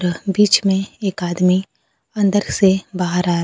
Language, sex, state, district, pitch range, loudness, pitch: Hindi, female, Bihar, Kaimur, 180-200 Hz, -17 LUFS, 190 Hz